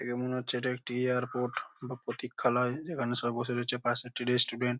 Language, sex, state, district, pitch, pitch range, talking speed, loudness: Bengali, male, West Bengal, Jhargram, 125 Hz, 120-125 Hz, 185 wpm, -27 LUFS